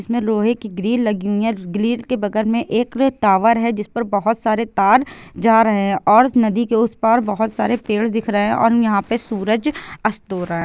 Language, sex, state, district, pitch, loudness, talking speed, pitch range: Hindi, female, Chhattisgarh, Bilaspur, 225 Hz, -17 LUFS, 225 wpm, 210-235 Hz